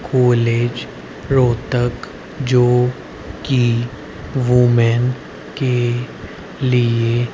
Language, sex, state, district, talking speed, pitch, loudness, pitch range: Hindi, male, Haryana, Rohtak, 55 wpm, 120 Hz, -17 LUFS, 120-125 Hz